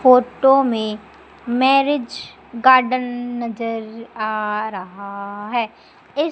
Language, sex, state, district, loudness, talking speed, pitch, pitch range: Hindi, female, Madhya Pradesh, Umaria, -19 LUFS, 85 wpm, 235 Hz, 215-255 Hz